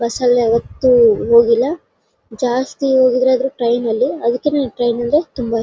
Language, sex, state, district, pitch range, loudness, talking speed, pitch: Kannada, female, Karnataka, Bellary, 240-295 Hz, -15 LUFS, 150 wpm, 255 Hz